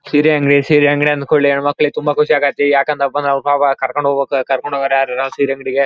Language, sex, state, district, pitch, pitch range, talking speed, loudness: Kannada, male, Karnataka, Bellary, 140 Hz, 140-145 Hz, 225 wpm, -14 LUFS